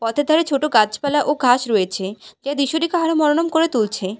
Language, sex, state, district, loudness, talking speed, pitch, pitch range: Bengali, female, West Bengal, Alipurduar, -18 LUFS, 185 wpm, 285 Hz, 215-310 Hz